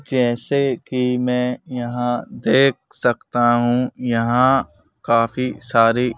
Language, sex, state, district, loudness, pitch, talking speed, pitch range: Hindi, male, Madhya Pradesh, Bhopal, -19 LUFS, 125 Hz, 95 wpm, 120-130 Hz